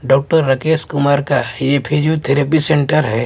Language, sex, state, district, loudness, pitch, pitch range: Hindi, male, Bihar, Katihar, -15 LUFS, 140 Hz, 135-155 Hz